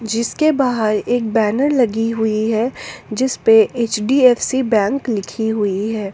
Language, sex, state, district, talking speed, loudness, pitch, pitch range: Hindi, female, Jharkhand, Garhwa, 125 wpm, -17 LUFS, 225 Hz, 215-250 Hz